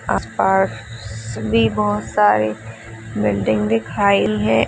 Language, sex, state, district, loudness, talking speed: Hindi, female, Bihar, Purnia, -18 LUFS, 90 wpm